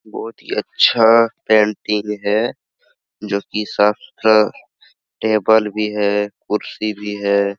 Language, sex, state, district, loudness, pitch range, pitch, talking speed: Hindi, male, Bihar, Araria, -17 LUFS, 105-110 Hz, 105 Hz, 125 wpm